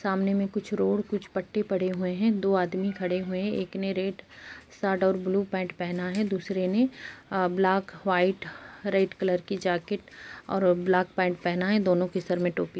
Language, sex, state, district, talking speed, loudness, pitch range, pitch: Hindi, female, Uttar Pradesh, Jalaun, 195 wpm, -27 LUFS, 180-195 Hz, 190 Hz